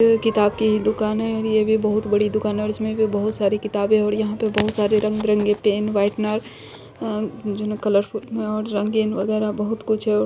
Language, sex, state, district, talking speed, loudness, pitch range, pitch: Hindi, female, Bihar, Saharsa, 215 wpm, -21 LUFS, 210-220 Hz, 215 Hz